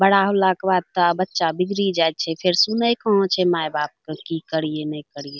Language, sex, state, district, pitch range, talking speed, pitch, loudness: Angika, female, Bihar, Bhagalpur, 160-195 Hz, 220 wpm, 175 Hz, -20 LUFS